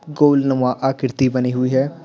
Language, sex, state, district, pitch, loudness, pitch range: Hindi, male, Bihar, Patna, 135 Hz, -18 LUFS, 125-145 Hz